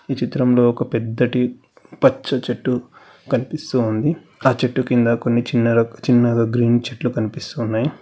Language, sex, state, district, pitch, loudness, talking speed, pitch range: Telugu, male, Telangana, Hyderabad, 125 Hz, -19 LUFS, 110 wpm, 120-130 Hz